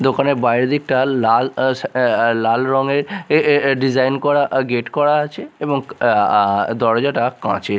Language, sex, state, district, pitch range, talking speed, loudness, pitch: Bengali, male, Odisha, Nuapada, 120-140 Hz, 170 wpm, -17 LUFS, 130 Hz